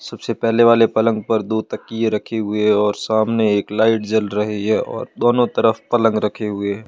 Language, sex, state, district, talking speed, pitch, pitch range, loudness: Hindi, male, Rajasthan, Jaisalmer, 210 wpm, 110 Hz, 105-115 Hz, -18 LUFS